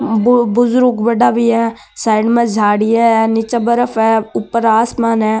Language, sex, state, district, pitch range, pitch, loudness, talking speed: Marwari, male, Rajasthan, Nagaur, 220-235 Hz, 230 Hz, -13 LUFS, 155 wpm